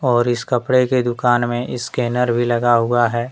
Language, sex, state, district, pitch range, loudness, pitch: Hindi, male, Jharkhand, Deoghar, 120-125 Hz, -18 LUFS, 120 Hz